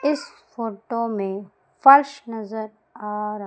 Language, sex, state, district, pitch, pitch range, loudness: Hindi, female, Madhya Pradesh, Umaria, 220 Hz, 210-270 Hz, -21 LUFS